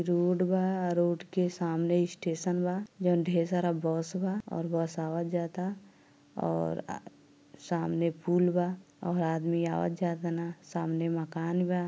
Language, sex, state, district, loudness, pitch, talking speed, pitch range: Bhojpuri, female, Uttar Pradesh, Gorakhpur, -31 LUFS, 175 Hz, 150 wpm, 165-180 Hz